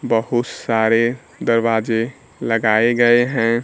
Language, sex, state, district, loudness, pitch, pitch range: Hindi, male, Bihar, Kaimur, -17 LUFS, 115 Hz, 115-120 Hz